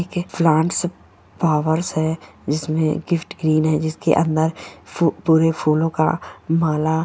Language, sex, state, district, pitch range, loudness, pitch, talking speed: Hindi, female, Bihar, Bhagalpur, 155-165 Hz, -20 LUFS, 160 Hz, 125 wpm